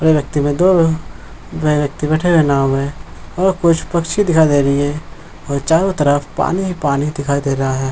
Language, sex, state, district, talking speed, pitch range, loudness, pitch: Hindi, male, Jharkhand, Jamtara, 190 wpm, 140-165 Hz, -16 LUFS, 150 Hz